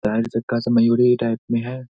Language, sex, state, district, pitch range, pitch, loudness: Hindi, male, Bihar, Saharsa, 115-125 Hz, 115 Hz, -20 LUFS